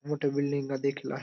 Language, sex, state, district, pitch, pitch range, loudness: Marathi, male, Maharashtra, Dhule, 140 Hz, 140-145 Hz, -30 LUFS